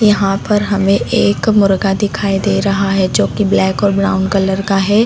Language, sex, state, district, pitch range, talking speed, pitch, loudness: Hindi, female, Chhattisgarh, Bastar, 195-205 Hz, 200 wpm, 195 Hz, -14 LUFS